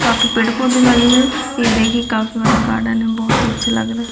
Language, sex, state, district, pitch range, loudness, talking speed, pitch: Hindi, female, Chhattisgarh, Raigarh, 225-245 Hz, -15 LUFS, 245 wpm, 230 Hz